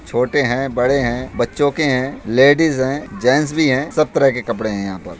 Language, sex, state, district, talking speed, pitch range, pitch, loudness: Hindi, male, Uttar Pradesh, Budaun, 210 wpm, 120-145 Hz, 135 Hz, -17 LUFS